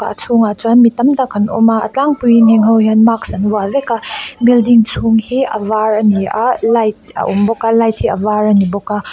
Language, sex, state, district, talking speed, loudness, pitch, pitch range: Mizo, female, Mizoram, Aizawl, 265 wpm, -12 LUFS, 225 Hz, 215-235 Hz